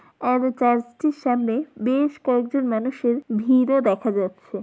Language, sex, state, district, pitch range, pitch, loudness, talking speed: Bengali, female, West Bengal, Jalpaiguri, 230-265 Hz, 250 Hz, -22 LUFS, 145 wpm